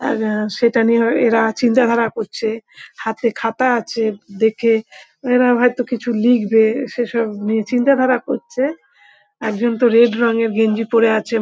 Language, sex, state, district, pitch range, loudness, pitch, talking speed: Bengali, female, West Bengal, Kolkata, 220-245 Hz, -17 LUFS, 230 Hz, 135 wpm